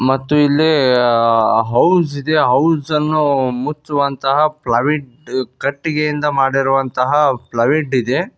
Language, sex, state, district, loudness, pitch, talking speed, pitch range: Kannada, male, Karnataka, Koppal, -15 LUFS, 140 Hz, 85 wpm, 130-150 Hz